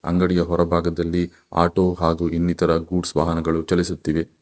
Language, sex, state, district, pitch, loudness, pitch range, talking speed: Kannada, male, Karnataka, Bangalore, 85 Hz, -21 LUFS, 80-90 Hz, 110 wpm